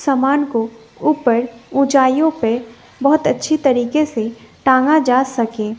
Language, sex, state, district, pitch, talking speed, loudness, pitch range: Hindi, female, Bihar, West Champaran, 260 Hz, 125 wpm, -16 LUFS, 230-285 Hz